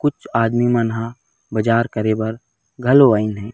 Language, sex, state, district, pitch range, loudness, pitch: Chhattisgarhi, male, Chhattisgarh, Raigarh, 110-125 Hz, -18 LUFS, 115 Hz